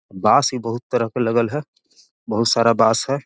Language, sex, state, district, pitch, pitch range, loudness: Magahi, male, Bihar, Jahanabad, 115 Hz, 115-130 Hz, -19 LUFS